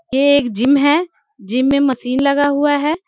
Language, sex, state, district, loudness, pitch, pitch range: Hindi, female, Jharkhand, Sahebganj, -15 LUFS, 280 Hz, 265-290 Hz